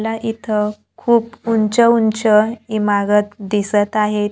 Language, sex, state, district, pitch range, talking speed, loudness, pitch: Marathi, female, Maharashtra, Gondia, 210-225 Hz, 110 wpm, -16 LUFS, 215 Hz